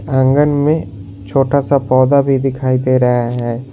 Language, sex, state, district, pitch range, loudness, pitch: Hindi, male, Jharkhand, Garhwa, 125-140 Hz, -14 LUFS, 130 Hz